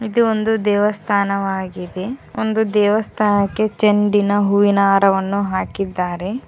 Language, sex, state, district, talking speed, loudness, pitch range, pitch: Kannada, female, Karnataka, Koppal, 85 wpm, -17 LUFS, 195-215 Hz, 205 Hz